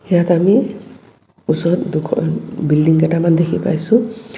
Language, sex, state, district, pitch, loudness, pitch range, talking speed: Assamese, female, Assam, Kamrup Metropolitan, 175 Hz, -16 LUFS, 160-210 Hz, 110 wpm